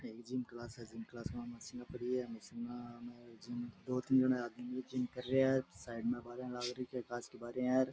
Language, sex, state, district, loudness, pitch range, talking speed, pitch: Rajasthani, male, Rajasthan, Nagaur, -40 LUFS, 120-125 Hz, 225 wpm, 120 Hz